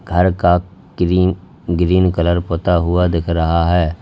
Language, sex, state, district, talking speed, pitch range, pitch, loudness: Hindi, male, Uttar Pradesh, Lalitpur, 150 wpm, 85-90 Hz, 90 Hz, -16 LUFS